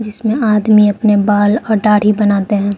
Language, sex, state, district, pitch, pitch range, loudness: Hindi, female, Arunachal Pradesh, Lower Dibang Valley, 210 Hz, 205-215 Hz, -12 LUFS